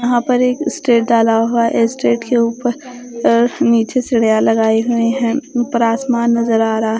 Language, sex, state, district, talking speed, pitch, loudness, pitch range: Hindi, female, Bihar, Katihar, 180 wpm, 235 Hz, -15 LUFS, 230-245 Hz